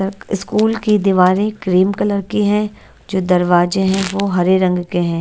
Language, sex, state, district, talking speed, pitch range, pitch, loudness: Hindi, female, Odisha, Nuapada, 175 wpm, 180-205 Hz, 195 Hz, -16 LUFS